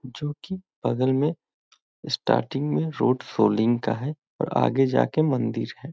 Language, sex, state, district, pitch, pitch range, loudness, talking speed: Hindi, male, Bihar, Muzaffarpur, 130 Hz, 115-150 Hz, -25 LUFS, 160 wpm